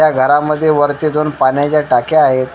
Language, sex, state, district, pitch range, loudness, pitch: Marathi, female, Maharashtra, Washim, 135-155 Hz, -13 LUFS, 150 Hz